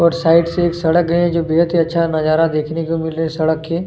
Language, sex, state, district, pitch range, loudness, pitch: Hindi, male, Chhattisgarh, Kabirdham, 160-170 Hz, -16 LUFS, 165 Hz